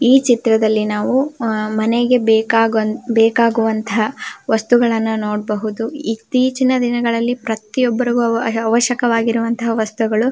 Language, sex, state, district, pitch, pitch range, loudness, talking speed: Kannada, female, Karnataka, Belgaum, 230 Hz, 220-240 Hz, -16 LUFS, 75 wpm